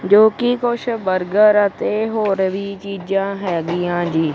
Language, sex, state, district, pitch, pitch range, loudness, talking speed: Punjabi, female, Punjab, Kapurthala, 200 Hz, 185-215 Hz, -18 LUFS, 140 wpm